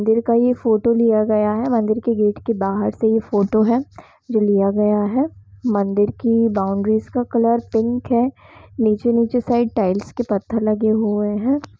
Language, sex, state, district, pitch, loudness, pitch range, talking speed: Hindi, female, Jharkhand, Jamtara, 220 Hz, -19 LUFS, 210-235 Hz, 185 wpm